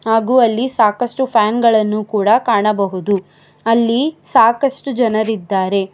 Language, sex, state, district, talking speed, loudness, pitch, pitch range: Kannada, female, Karnataka, Bangalore, 100 wpm, -15 LUFS, 225 Hz, 205-240 Hz